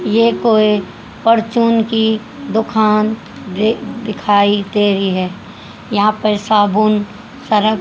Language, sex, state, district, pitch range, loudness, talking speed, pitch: Hindi, female, Haryana, Charkhi Dadri, 205-225 Hz, -15 LUFS, 105 wpm, 215 Hz